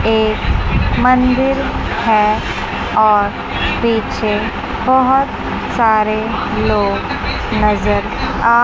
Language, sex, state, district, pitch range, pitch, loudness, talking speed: Hindi, female, Chandigarh, Chandigarh, 205-235 Hz, 215 Hz, -15 LUFS, 70 wpm